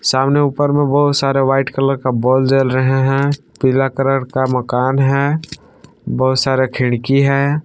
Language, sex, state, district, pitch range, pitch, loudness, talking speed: Hindi, male, Jharkhand, Palamu, 130-140 Hz, 135 Hz, -15 LUFS, 165 wpm